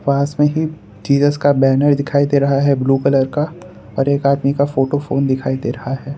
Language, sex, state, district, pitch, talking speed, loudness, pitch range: Hindi, male, Gujarat, Valsad, 140 Hz, 225 wpm, -16 LUFS, 135-145 Hz